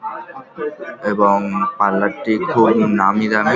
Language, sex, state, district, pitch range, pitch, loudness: Bengali, male, West Bengal, Paschim Medinipur, 100-135 Hz, 110 Hz, -17 LUFS